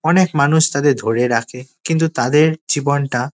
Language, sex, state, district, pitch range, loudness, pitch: Bengali, male, West Bengal, Dakshin Dinajpur, 125-160 Hz, -16 LUFS, 145 Hz